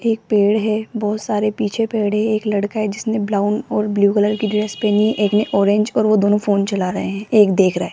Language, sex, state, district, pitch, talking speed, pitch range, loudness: Hindi, female, Rajasthan, Jaipur, 210 Hz, 255 wpm, 205-215 Hz, -17 LUFS